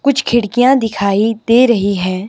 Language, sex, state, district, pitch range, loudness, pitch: Hindi, female, Himachal Pradesh, Shimla, 200-245 Hz, -13 LUFS, 225 Hz